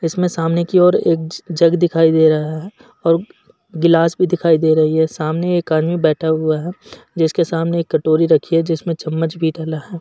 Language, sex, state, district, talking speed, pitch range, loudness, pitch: Hindi, male, Uttar Pradesh, Jalaun, 210 wpm, 160-170 Hz, -16 LUFS, 165 Hz